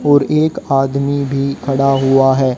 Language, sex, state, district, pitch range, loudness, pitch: Hindi, female, Haryana, Jhajjar, 135-140 Hz, -14 LUFS, 135 Hz